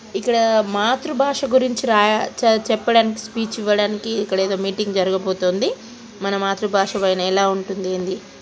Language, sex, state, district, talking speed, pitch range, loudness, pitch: Telugu, female, Andhra Pradesh, Chittoor, 145 wpm, 195-225 Hz, -19 LUFS, 210 Hz